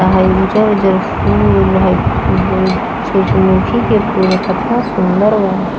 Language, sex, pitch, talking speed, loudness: Bhojpuri, female, 190 Hz, 145 wpm, -12 LUFS